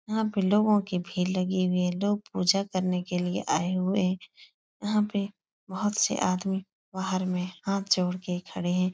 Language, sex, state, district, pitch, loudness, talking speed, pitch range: Hindi, female, Uttar Pradesh, Etah, 185 Hz, -28 LUFS, 180 wpm, 180-200 Hz